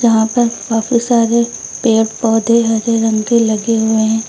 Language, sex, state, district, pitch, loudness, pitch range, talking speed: Hindi, female, Uttar Pradesh, Lucknow, 225 Hz, -14 LUFS, 220-235 Hz, 170 wpm